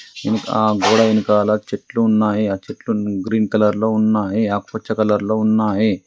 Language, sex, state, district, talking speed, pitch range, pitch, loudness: Telugu, male, Telangana, Adilabad, 140 wpm, 105-110 Hz, 110 Hz, -18 LUFS